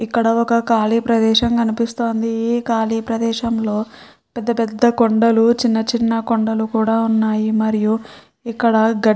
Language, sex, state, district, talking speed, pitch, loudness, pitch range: Telugu, female, Andhra Pradesh, Srikakulam, 130 wpm, 230 Hz, -17 LUFS, 220-230 Hz